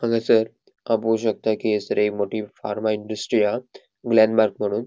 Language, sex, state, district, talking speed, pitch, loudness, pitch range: Konkani, male, Goa, North and South Goa, 160 wpm, 110 Hz, -22 LUFS, 105-110 Hz